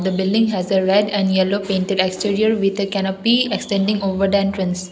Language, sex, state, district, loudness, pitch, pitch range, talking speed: English, female, Assam, Kamrup Metropolitan, -18 LUFS, 195 Hz, 190-205 Hz, 170 wpm